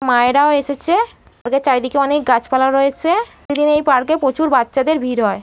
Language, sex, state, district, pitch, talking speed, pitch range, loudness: Bengali, female, West Bengal, North 24 Parganas, 275 Hz, 190 wpm, 255-300 Hz, -16 LUFS